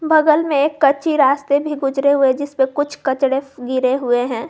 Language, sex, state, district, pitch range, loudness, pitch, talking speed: Hindi, female, Jharkhand, Garhwa, 265-290 Hz, -17 LUFS, 280 Hz, 200 wpm